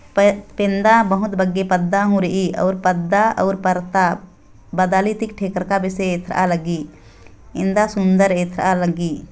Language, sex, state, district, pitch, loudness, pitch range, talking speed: Sadri, female, Chhattisgarh, Jashpur, 190 Hz, -18 LUFS, 180-200 Hz, 135 wpm